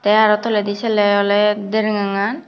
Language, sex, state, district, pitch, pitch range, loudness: Chakma, female, Tripura, Dhalai, 210 Hz, 205-215 Hz, -17 LUFS